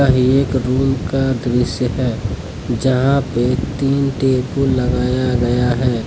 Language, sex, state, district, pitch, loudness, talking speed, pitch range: Hindi, male, Jharkhand, Deoghar, 130 Hz, -17 LUFS, 130 wpm, 125-135 Hz